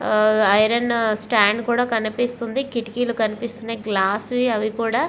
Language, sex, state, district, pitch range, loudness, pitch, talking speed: Telugu, female, Andhra Pradesh, Visakhapatnam, 215-240 Hz, -20 LUFS, 230 Hz, 140 wpm